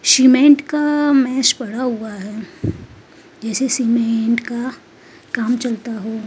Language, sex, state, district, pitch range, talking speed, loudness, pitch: Hindi, female, Uttarakhand, Tehri Garhwal, 225-265 Hz, 125 wpm, -17 LUFS, 245 Hz